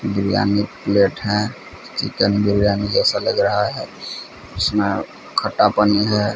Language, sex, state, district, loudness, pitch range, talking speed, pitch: Hindi, male, Odisha, Sambalpur, -19 LUFS, 100-105 Hz, 125 wpm, 100 Hz